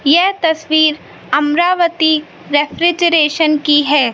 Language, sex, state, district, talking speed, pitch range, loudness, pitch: Hindi, female, Madhya Pradesh, Katni, 85 wpm, 295-335 Hz, -13 LUFS, 315 Hz